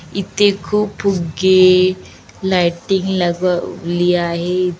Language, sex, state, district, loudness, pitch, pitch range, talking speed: Marathi, female, Maharashtra, Aurangabad, -16 LUFS, 185 Hz, 175-190 Hz, 75 wpm